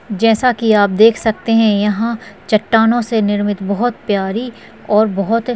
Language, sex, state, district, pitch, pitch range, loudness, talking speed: Hindi, female, Chhattisgarh, Sukma, 220 Hz, 205-230 Hz, -14 LUFS, 150 wpm